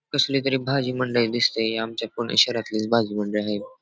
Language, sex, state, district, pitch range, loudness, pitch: Marathi, male, Maharashtra, Pune, 110-130 Hz, -23 LUFS, 115 Hz